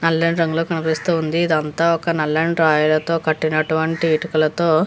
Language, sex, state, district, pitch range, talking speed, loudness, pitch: Telugu, female, Andhra Pradesh, Visakhapatnam, 155-165 Hz, 135 wpm, -18 LUFS, 160 Hz